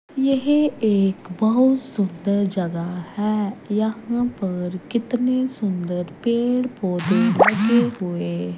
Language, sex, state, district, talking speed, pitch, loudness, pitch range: Hindi, female, Punjab, Pathankot, 100 wpm, 215 Hz, -21 LUFS, 185-245 Hz